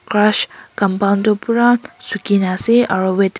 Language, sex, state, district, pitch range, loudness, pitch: Nagamese, female, Nagaland, Kohima, 195-230 Hz, -16 LUFS, 205 Hz